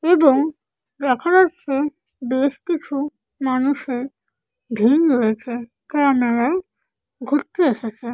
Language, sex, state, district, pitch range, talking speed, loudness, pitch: Bengali, female, West Bengal, Paschim Medinipur, 250-305 Hz, 95 wpm, -20 LUFS, 275 Hz